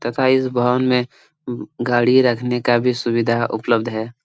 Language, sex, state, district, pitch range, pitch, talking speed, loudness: Hindi, male, Jharkhand, Jamtara, 120-125 Hz, 120 Hz, 155 wpm, -18 LUFS